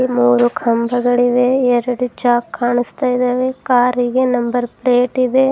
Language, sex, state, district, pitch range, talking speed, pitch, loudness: Kannada, female, Karnataka, Bidar, 240-255 Hz, 110 wpm, 245 Hz, -15 LUFS